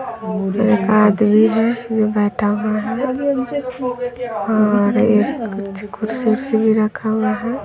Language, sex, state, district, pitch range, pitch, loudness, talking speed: Hindi, female, Bihar, West Champaran, 210-240 Hz, 220 Hz, -17 LUFS, 125 wpm